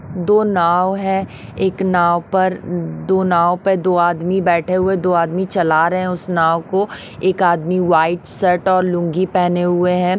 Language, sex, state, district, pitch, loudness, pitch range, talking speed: Hindi, female, Haryana, Rohtak, 180 Hz, -16 LUFS, 170-185 Hz, 175 wpm